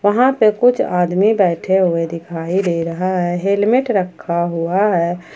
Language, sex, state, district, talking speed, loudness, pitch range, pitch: Hindi, female, Jharkhand, Ranchi, 155 wpm, -16 LUFS, 170-205 Hz, 185 Hz